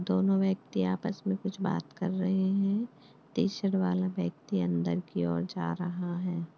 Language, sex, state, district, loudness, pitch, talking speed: Hindi, male, Uttarakhand, Tehri Garhwal, -31 LUFS, 185 Hz, 175 wpm